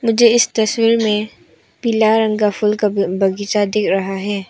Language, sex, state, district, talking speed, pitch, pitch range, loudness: Hindi, female, Arunachal Pradesh, Papum Pare, 185 wpm, 210 Hz, 200-225 Hz, -16 LUFS